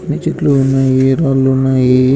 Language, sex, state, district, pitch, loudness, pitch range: Telugu, male, Andhra Pradesh, Anantapur, 135 Hz, -12 LUFS, 130-145 Hz